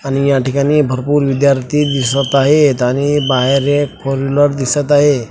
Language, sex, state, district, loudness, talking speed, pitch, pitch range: Marathi, male, Maharashtra, Washim, -13 LUFS, 145 wpm, 140 Hz, 135-145 Hz